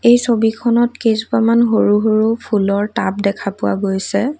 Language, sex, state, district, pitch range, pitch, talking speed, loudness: Assamese, female, Assam, Kamrup Metropolitan, 205-235 Hz, 225 Hz, 135 wpm, -16 LUFS